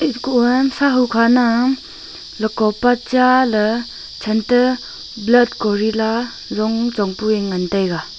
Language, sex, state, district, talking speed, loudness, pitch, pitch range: Wancho, female, Arunachal Pradesh, Longding, 130 wpm, -17 LUFS, 230 Hz, 215-250 Hz